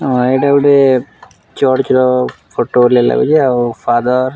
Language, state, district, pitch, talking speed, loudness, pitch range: Sambalpuri, Odisha, Sambalpur, 130 Hz, 125 wpm, -12 LUFS, 125-130 Hz